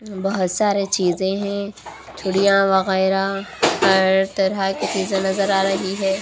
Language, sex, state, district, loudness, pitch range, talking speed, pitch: Hindi, female, Haryana, Rohtak, -19 LUFS, 190-195 Hz, 125 wpm, 195 Hz